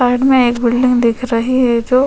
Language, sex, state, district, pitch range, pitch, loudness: Hindi, female, Chhattisgarh, Sukma, 235-255 Hz, 245 Hz, -13 LUFS